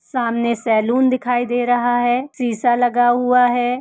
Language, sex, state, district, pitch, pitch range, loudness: Hindi, female, Uttar Pradesh, Etah, 245 Hz, 240-250 Hz, -17 LUFS